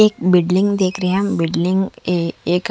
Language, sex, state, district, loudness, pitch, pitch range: Hindi, female, Haryana, Charkhi Dadri, -17 LUFS, 180 Hz, 175-190 Hz